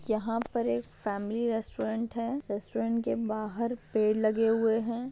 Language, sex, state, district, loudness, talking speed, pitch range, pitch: Hindi, female, Maharashtra, Dhule, -30 LUFS, 150 wpm, 215-230 Hz, 225 Hz